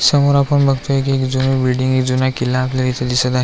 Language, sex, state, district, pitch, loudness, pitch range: Marathi, male, Maharashtra, Aurangabad, 130 Hz, -16 LUFS, 125-135 Hz